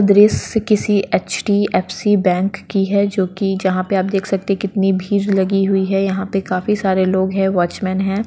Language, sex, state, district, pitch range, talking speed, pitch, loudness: Hindi, female, Bihar, Sitamarhi, 190-200 Hz, 195 wpm, 195 Hz, -17 LUFS